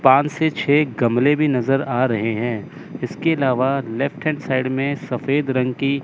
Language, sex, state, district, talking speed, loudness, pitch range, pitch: Hindi, male, Chandigarh, Chandigarh, 190 wpm, -20 LUFS, 125-145 Hz, 135 Hz